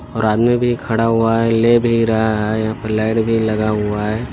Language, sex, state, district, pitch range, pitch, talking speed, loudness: Hindi, male, Chhattisgarh, Bilaspur, 110-115 Hz, 110 Hz, 220 wpm, -16 LUFS